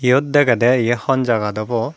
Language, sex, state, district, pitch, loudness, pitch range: Chakma, female, Tripura, Dhalai, 120 Hz, -17 LUFS, 115-135 Hz